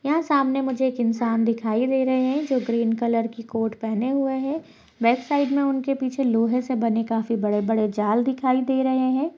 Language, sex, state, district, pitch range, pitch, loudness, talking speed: Hindi, female, Uttar Pradesh, Budaun, 230-265 Hz, 255 Hz, -23 LUFS, 200 wpm